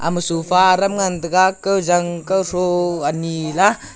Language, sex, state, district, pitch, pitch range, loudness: Wancho, male, Arunachal Pradesh, Longding, 180 Hz, 170-190 Hz, -17 LUFS